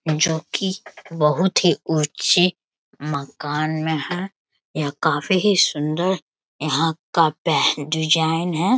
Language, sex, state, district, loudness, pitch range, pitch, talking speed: Hindi, male, Bihar, Bhagalpur, -20 LUFS, 150-180 Hz, 160 Hz, 115 wpm